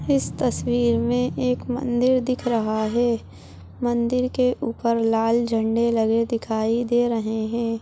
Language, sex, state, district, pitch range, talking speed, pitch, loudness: Hindi, female, Chhattisgarh, Balrampur, 225-240 Hz, 145 wpm, 235 Hz, -22 LUFS